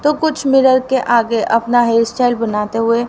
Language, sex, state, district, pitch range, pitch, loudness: Hindi, female, Haryana, Rohtak, 230-260 Hz, 240 Hz, -14 LUFS